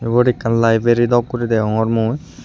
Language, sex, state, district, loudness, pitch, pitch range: Chakma, male, Tripura, Unakoti, -16 LUFS, 115 Hz, 115-120 Hz